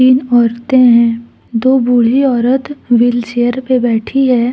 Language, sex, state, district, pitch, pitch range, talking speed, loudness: Hindi, female, Jharkhand, Deoghar, 245 Hz, 235-260 Hz, 120 wpm, -12 LUFS